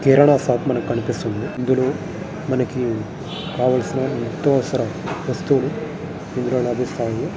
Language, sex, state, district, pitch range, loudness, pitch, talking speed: Telugu, male, Andhra Pradesh, Guntur, 125-145 Hz, -21 LUFS, 130 Hz, 100 wpm